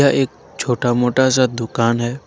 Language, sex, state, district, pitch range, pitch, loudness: Hindi, male, Jharkhand, Ranchi, 120-130 Hz, 125 Hz, -18 LUFS